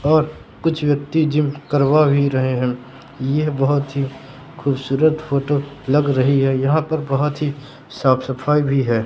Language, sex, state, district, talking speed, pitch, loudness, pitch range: Hindi, male, Madhya Pradesh, Katni, 160 wpm, 140 Hz, -19 LUFS, 135-150 Hz